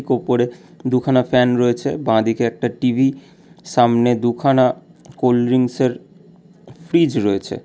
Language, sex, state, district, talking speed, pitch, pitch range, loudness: Bengali, male, West Bengal, Alipurduar, 95 wpm, 125 Hz, 120-140 Hz, -18 LUFS